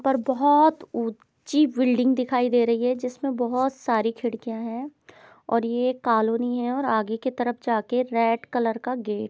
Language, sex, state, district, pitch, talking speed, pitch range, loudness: Hindi, female, Bihar, East Champaran, 245 Hz, 175 wpm, 230-255 Hz, -24 LUFS